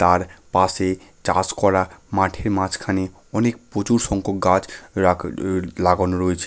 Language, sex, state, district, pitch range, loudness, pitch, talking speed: Bengali, male, West Bengal, Malda, 90-95 Hz, -21 LUFS, 95 Hz, 130 wpm